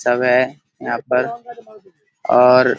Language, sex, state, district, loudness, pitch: Hindi, male, Bihar, Kishanganj, -16 LUFS, 130 Hz